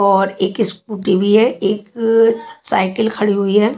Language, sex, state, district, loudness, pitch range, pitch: Hindi, female, Chhattisgarh, Raipur, -16 LUFS, 200-225 Hz, 210 Hz